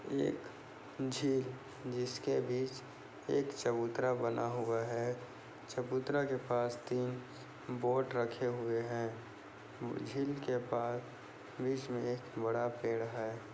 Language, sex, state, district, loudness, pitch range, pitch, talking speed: Hindi, male, Maharashtra, Chandrapur, -38 LUFS, 115-130 Hz, 120 Hz, 115 wpm